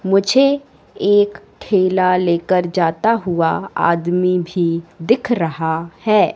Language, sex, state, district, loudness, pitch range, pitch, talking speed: Hindi, female, Madhya Pradesh, Katni, -17 LUFS, 170-205 Hz, 180 Hz, 115 wpm